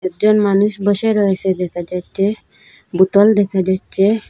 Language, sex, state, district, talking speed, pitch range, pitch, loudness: Bengali, female, Assam, Hailakandi, 125 wpm, 185-210 Hz, 195 Hz, -16 LUFS